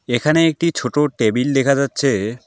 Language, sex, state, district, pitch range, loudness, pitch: Bengali, male, West Bengal, Alipurduar, 125-150 Hz, -17 LUFS, 140 Hz